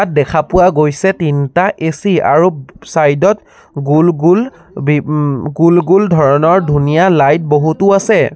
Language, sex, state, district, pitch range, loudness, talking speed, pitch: Assamese, male, Assam, Sonitpur, 150-185 Hz, -11 LUFS, 135 wpm, 160 Hz